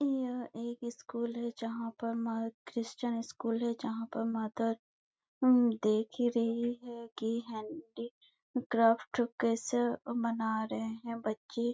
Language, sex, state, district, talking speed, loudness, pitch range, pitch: Hindi, female, Chhattisgarh, Bastar, 135 wpm, -34 LUFS, 230-240 Hz, 235 Hz